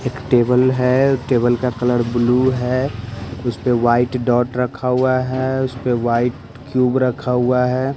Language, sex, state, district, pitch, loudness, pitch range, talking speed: Hindi, male, Bihar, West Champaran, 125 Hz, -17 LUFS, 120-130 Hz, 165 wpm